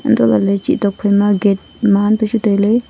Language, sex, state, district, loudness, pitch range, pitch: Wancho, female, Arunachal Pradesh, Longding, -14 LUFS, 200-215 Hz, 205 Hz